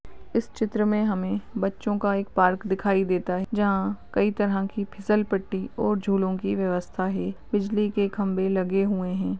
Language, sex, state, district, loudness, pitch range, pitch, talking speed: Hindi, female, Uttar Pradesh, Ghazipur, -25 LUFS, 190-210 Hz, 195 Hz, 180 wpm